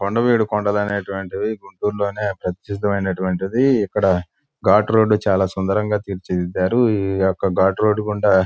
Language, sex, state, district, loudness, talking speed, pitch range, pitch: Telugu, male, Andhra Pradesh, Guntur, -19 LUFS, 130 wpm, 95-105 Hz, 100 Hz